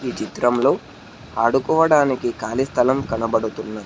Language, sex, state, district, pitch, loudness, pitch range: Telugu, male, Telangana, Hyderabad, 125 Hz, -20 LUFS, 115-135 Hz